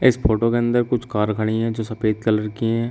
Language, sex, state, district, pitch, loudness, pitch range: Hindi, male, Uttar Pradesh, Shamli, 115 Hz, -21 LUFS, 110-120 Hz